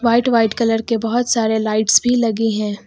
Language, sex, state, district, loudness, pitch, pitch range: Hindi, female, Uttar Pradesh, Lucknow, -16 LUFS, 225 Hz, 220-235 Hz